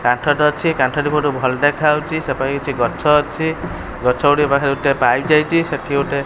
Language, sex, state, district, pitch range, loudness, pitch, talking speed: Odia, male, Odisha, Khordha, 135-150 Hz, -17 LUFS, 145 Hz, 200 wpm